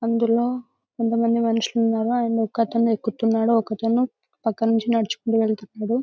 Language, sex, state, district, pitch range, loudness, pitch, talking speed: Telugu, male, Telangana, Karimnagar, 225-235 Hz, -22 LUFS, 230 Hz, 120 wpm